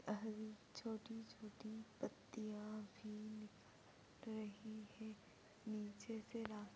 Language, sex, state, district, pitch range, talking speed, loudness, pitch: Hindi, female, Uttarakhand, Tehri Garhwal, 210-220 Hz, 100 wpm, -52 LUFS, 215 Hz